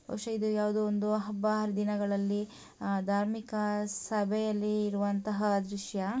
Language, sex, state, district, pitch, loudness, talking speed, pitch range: Kannada, female, Karnataka, Mysore, 210 Hz, -32 LUFS, 95 wpm, 205-215 Hz